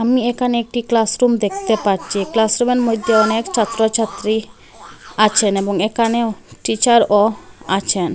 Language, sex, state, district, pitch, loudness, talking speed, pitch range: Bengali, female, Assam, Hailakandi, 225 Hz, -16 LUFS, 125 wpm, 205-235 Hz